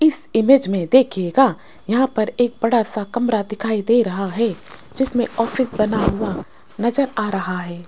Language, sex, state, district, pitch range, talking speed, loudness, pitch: Hindi, female, Rajasthan, Jaipur, 205-245 Hz, 165 wpm, -19 LUFS, 225 Hz